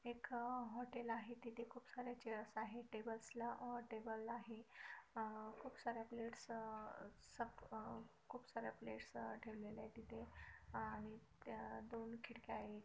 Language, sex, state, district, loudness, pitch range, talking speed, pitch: Marathi, female, Maharashtra, Chandrapur, -52 LUFS, 220-240 Hz, 130 wpm, 230 Hz